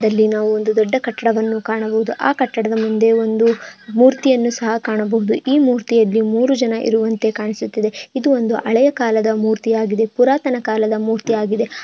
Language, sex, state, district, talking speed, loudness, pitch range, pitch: Kannada, female, Karnataka, Mysore, 125 wpm, -17 LUFS, 220-240 Hz, 225 Hz